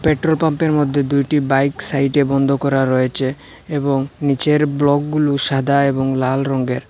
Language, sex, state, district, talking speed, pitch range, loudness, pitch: Bengali, male, Assam, Hailakandi, 140 wpm, 135-150 Hz, -17 LUFS, 140 Hz